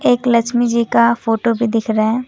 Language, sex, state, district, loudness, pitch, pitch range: Hindi, female, West Bengal, Alipurduar, -15 LUFS, 235 Hz, 225-240 Hz